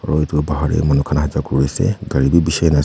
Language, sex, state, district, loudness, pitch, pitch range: Nagamese, male, Nagaland, Kohima, -17 LUFS, 75 Hz, 70-80 Hz